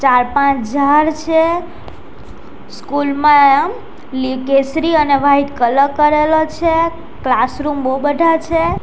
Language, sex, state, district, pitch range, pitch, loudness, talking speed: Gujarati, female, Gujarat, Valsad, 275-320 Hz, 285 Hz, -14 LUFS, 115 wpm